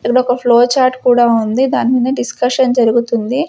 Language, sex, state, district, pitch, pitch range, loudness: Telugu, female, Andhra Pradesh, Sri Satya Sai, 250 Hz, 240-255 Hz, -13 LUFS